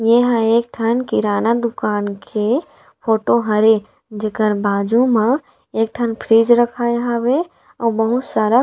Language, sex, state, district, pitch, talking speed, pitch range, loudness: Chhattisgarhi, female, Chhattisgarh, Rajnandgaon, 230 Hz, 140 wpm, 215-240 Hz, -17 LUFS